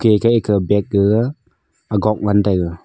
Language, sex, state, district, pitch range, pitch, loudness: Wancho, male, Arunachal Pradesh, Longding, 100-110 Hz, 105 Hz, -16 LUFS